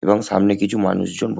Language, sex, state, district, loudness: Bengali, male, West Bengal, Kolkata, -18 LUFS